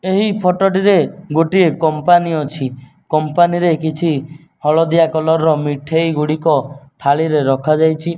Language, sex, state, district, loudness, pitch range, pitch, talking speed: Odia, male, Odisha, Nuapada, -15 LUFS, 150-170 Hz, 160 Hz, 115 wpm